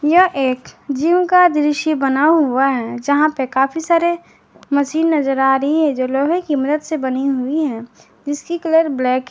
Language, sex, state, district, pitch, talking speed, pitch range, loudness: Hindi, female, Jharkhand, Garhwa, 290 Hz, 185 wpm, 270-320 Hz, -16 LUFS